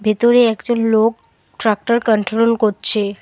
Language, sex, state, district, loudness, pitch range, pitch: Bengali, female, West Bengal, Alipurduar, -16 LUFS, 215-235 Hz, 225 Hz